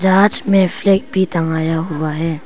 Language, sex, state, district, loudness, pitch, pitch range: Hindi, female, Arunachal Pradesh, Papum Pare, -16 LUFS, 175 Hz, 160-195 Hz